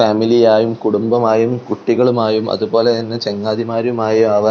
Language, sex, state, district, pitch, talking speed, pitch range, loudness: Malayalam, male, Kerala, Kozhikode, 115 Hz, 95 wpm, 110-115 Hz, -15 LUFS